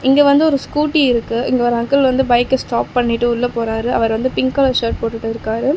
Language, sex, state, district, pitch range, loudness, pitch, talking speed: Tamil, female, Tamil Nadu, Chennai, 230-270 Hz, -16 LUFS, 245 Hz, 220 wpm